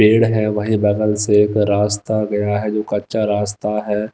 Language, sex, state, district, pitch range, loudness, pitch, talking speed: Hindi, male, Himachal Pradesh, Shimla, 105-110 Hz, -17 LUFS, 105 Hz, 190 wpm